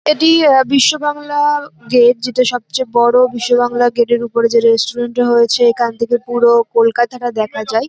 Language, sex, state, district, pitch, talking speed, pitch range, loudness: Bengali, female, West Bengal, North 24 Parganas, 240 Hz, 175 wpm, 235-255 Hz, -13 LUFS